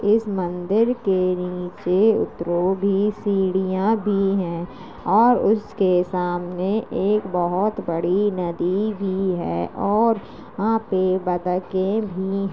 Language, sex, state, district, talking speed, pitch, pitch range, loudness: Hindi, male, Uttar Pradesh, Jalaun, 115 wpm, 190 Hz, 180-210 Hz, -21 LUFS